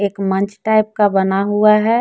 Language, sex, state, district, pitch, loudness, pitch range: Hindi, female, Jharkhand, Deoghar, 205 Hz, -15 LUFS, 195-215 Hz